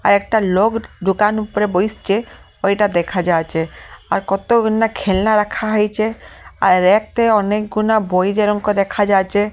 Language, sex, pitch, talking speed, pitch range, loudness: Bengali, female, 210 Hz, 145 wpm, 195-215 Hz, -17 LUFS